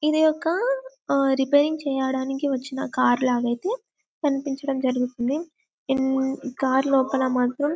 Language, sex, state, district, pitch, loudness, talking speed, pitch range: Telugu, female, Telangana, Karimnagar, 270 Hz, -24 LUFS, 110 wpm, 260-300 Hz